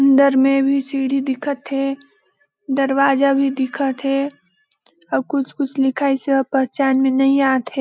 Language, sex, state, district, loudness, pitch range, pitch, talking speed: Hindi, female, Chhattisgarh, Balrampur, -18 LUFS, 265-275 Hz, 275 Hz, 155 wpm